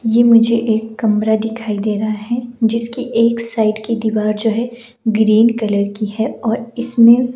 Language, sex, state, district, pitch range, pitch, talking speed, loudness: Hindi, female, Himachal Pradesh, Shimla, 215-235 Hz, 225 Hz, 155 wpm, -16 LUFS